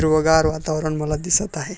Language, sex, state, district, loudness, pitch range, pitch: Marathi, male, Maharashtra, Dhule, -19 LUFS, 155-160 Hz, 155 Hz